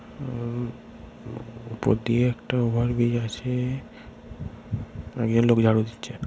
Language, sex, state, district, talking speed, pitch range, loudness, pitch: Bengali, male, West Bengal, Paschim Medinipur, 105 wpm, 115-125 Hz, -25 LUFS, 120 Hz